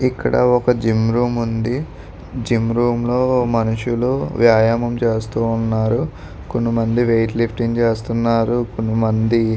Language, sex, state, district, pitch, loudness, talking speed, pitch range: Telugu, male, Andhra Pradesh, Visakhapatnam, 115 Hz, -18 LUFS, 120 wpm, 115-120 Hz